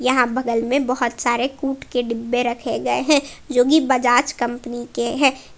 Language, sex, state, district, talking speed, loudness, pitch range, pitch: Hindi, female, Jharkhand, Palamu, 185 wpm, -20 LUFS, 240-270 Hz, 245 Hz